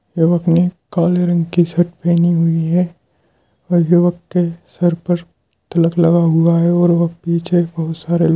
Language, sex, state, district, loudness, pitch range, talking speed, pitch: Hindi, male, Bihar, Madhepura, -15 LUFS, 165-175 Hz, 180 wpm, 170 Hz